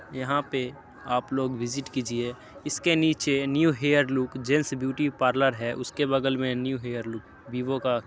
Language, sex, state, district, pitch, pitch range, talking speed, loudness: Hindi, male, Bihar, Muzaffarpur, 130 Hz, 125-140 Hz, 170 wpm, -27 LUFS